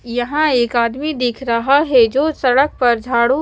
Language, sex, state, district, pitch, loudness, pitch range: Hindi, female, Chandigarh, Chandigarh, 250 Hz, -15 LUFS, 240-285 Hz